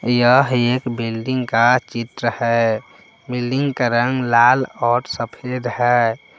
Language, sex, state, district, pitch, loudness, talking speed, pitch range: Hindi, male, Jharkhand, Palamu, 120 Hz, -18 LUFS, 120 wpm, 120-125 Hz